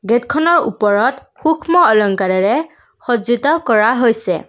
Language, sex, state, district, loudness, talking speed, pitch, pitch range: Assamese, female, Assam, Kamrup Metropolitan, -14 LUFS, 95 wpm, 240 Hz, 215-315 Hz